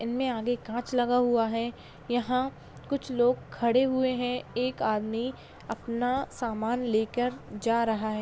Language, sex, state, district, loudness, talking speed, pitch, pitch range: Hindi, female, Bihar, Kishanganj, -29 LUFS, 145 wpm, 245 Hz, 230-250 Hz